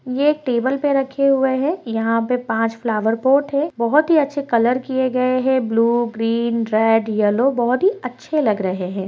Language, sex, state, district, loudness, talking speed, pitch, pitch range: Hindi, female, Bihar, Purnia, -18 LUFS, 220 wpm, 250 Hz, 225-275 Hz